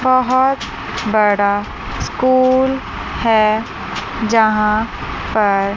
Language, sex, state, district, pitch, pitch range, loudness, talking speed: Hindi, female, Chandigarh, Chandigarh, 220 Hz, 210-255 Hz, -16 LUFS, 75 wpm